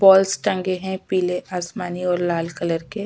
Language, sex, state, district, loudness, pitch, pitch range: Hindi, female, Chhattisgarh, Sukma, -22 LUFS, 180 Hz, 175-190 Hz